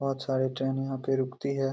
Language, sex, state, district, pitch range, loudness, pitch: Hindi, male, Jharkhand, Jamtara, 130-135 Hz, -30 LUFS, 135 Hz